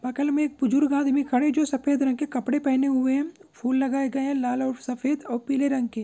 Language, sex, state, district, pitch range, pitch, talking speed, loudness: Hindi, male, Bihar, Purnia, 255-285 Hz, 270 Hz, 260 wpm, -24 LUFS